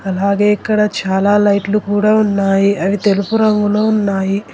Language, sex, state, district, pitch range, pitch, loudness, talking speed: Telugu, female, Telangana, Hyderabad, 195-210 Hz, 205 Hz, -14 LUFS, 130 wpm